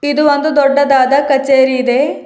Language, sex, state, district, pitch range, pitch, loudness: Kannada, female, Karnataka, Bidar, 265-290 Hz, 280 Hz, -11 LUFS